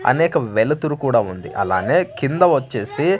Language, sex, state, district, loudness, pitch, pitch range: Telugu, male, Andhra Pradesh, Manyam, -19 LUFS, 140 Hz, 110-165 Hz